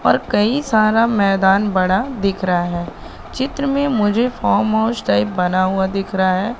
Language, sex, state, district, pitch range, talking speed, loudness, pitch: Hindi, female, Madhya Pradesh, Katni, 190-230 Hz, 175 wpm, -17 LUFS, 205 Hz